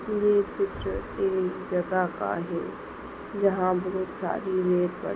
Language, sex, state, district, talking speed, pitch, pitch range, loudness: Hindi, female, Maharashtra, Solapur, 130 wpm, 185 Hz, 185-200 Hz, -27 LUFS